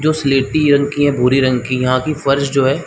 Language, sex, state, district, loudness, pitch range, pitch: Hindi, male, Chhattisgarh, Balrampur, -15 LUFS, 130-145 Hz, 140 Hz